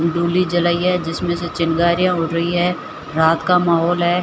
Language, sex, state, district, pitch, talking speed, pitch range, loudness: Hindi, female, Rajasthan, Barmer, 175 Hz, 185 wpm, 165-180 Hz, -17 LUFS